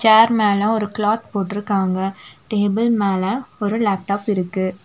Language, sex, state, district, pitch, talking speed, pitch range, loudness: Tamil, female, Tamil Nadu, Nilgiris, 205 Hz, 125 wpm, 195-220 Hz, -19 LUFS